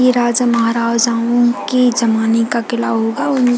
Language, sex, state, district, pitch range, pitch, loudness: Hindi, female, Chhattisgarh, Bilaspur, 230-245 Hz, 235 Hz, -15 LUFS